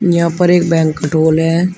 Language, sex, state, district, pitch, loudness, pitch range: Hindi, male, Uttar Pradesh, Shamli, 170 Hz, -13 LUFS, 160-175 Hz